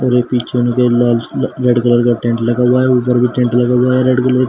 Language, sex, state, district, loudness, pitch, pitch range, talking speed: Hindi, male, Uttar Pradesh, Shamli, -13 LUFS, 125 Hz, 120-125 Hz, 240 wpm